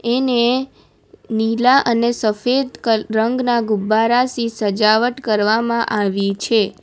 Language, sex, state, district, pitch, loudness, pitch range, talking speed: Gujarati, female, Gujarat, Valsad, 230 Hz, -17 LUFS, 215-245 Hz, 105 wpm